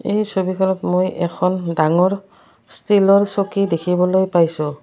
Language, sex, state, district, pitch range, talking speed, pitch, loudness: Assamese, female, Assam, Kamrup Metropolitan, 175-195 Hz, 110 wpm, 185 Hz, -17 LUFS